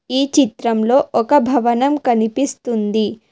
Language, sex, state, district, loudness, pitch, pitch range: Telugu, female, Telangana, Hyderabad, -16 LUFS, 245 Hz, 230-275 Hz